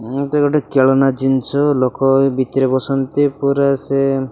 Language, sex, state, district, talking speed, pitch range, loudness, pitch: Odia, male, Odisha, Malkangiri, 125 wpm, 130-140 Hz, -16 LUFS, 135 Hz